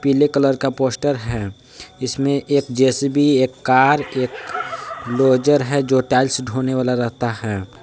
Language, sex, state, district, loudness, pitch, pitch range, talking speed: Hindi, male, Jharkhand, Palamu, -18 LUFS, 130 Hz, 125-140 Hz, 145 wpm